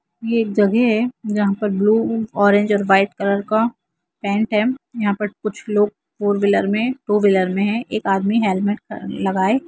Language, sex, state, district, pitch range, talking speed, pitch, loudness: Hindi, female, Jharkhand, Jamtara, 200-225 Hz, 165 wpm, 210 Hz, -19 LUFS